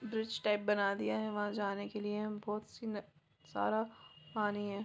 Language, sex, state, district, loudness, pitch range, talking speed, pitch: Hindi, female, Jharkhand, Jamtara, -38 LUFS, 200-215 Hz, 175 wpm, 210 Hz